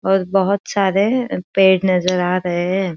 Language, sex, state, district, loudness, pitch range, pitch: Hindi, female, Maharashtra, Aurangabad, -17 LUFS, 180-195 Hz, 190 Hz